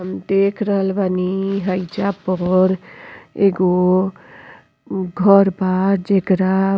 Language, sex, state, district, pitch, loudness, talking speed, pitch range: Bhojpuri, female, Uttar Pradesh, Gorakhpur, 190 Hz, -18 LUFS, 95 wpm, 185-195 Hz